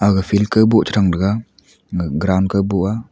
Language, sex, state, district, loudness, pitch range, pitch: Wancho, male, Arunachal Pradesh, Longding, -17 LUFS, 95-110 Hz, 100 Hz